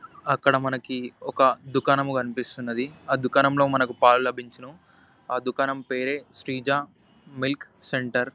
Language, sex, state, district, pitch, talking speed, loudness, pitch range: Telugu, male, Andhra Pradesh, Anantapur, 135 Hz, 120 wpm, -24 LUFS, 125-140 Hz